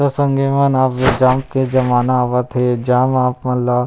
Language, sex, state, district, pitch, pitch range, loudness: Chhattisgarhi, male, Chhattisgarh, Rajnandgaon, 130 Hz, 125-135 Hz, -15 LUFS